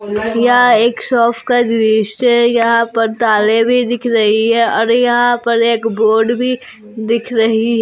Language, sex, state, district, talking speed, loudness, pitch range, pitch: Hindi, female, Jharkhand, Garhwa, 160 wpm, -13 LUFS, 220-240 Hz, 230 Hz